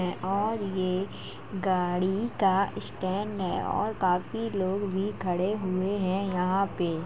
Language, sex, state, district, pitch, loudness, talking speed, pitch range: Hindi, female, Uttar Pradesh, Jalaun, 190 Hz, -29 LUFS, 125 wpm, 185-200 Hz